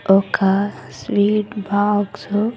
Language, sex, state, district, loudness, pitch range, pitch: Telugu, female, Andhra Pradesh, Sri Satya Sai, -19 LUFS, 200-205 Hz, 205 Hz